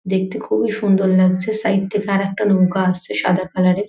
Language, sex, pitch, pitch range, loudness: Bengali, female, 190 Hz, 185-200 Hz, -18 LUFS